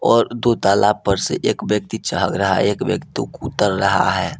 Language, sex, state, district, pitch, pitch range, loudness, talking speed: Hindi, male, Jharkhand, Palamu, 105 Hz, 100-110 Hz, -18 LUFS, 205 wpm